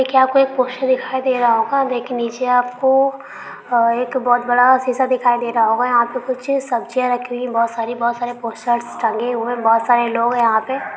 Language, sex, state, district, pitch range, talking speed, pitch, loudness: Hindi, female, West Bengal, Kolkata, 235-260 Hz, 210 wpm, 245 Hz, -17 LUFS